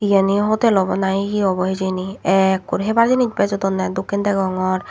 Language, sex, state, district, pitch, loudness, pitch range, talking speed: Chakma, female, Tripura, Dhalai, 195 Hz, -18 LUFS, 190-205 Hz, 170 wpm